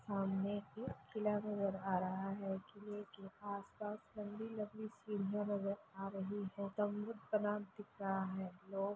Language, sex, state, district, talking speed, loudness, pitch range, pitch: Hindi, female, Chhattisgarh, Sukma, 140 wpm, -43 LUFS, 195-210 Hz, 200 Hz